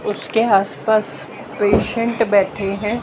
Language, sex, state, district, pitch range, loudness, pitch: Hindi, female, Haryana, Jhajjar, 200-225 Hz, -18 LUFS, 210 Hz